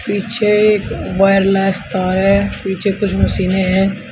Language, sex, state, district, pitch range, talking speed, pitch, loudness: Hindi, male, Uttar Pradesh, Shamli, 190-205 Hz, 115 wpm, 195 Hz, -15 LUFS